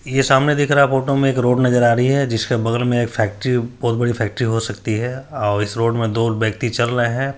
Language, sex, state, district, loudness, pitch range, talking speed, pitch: Hindi, male, Bihar, Supaul, -18 LUFS, 115-130 Hz, 260 wpm, 120 Hz